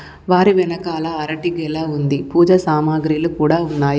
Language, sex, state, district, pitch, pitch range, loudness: Telugu, female, Telangana, Komaram Bheem, 160 Hz, 155-170 Hz, -17 LUFS